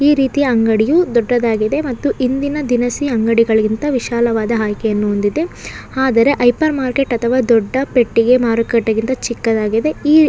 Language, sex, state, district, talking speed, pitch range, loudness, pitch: Kannada, female, Karnataka, Shimoga, 100 wpm, 225-265 Hz, -15 LUFS, 240 Hz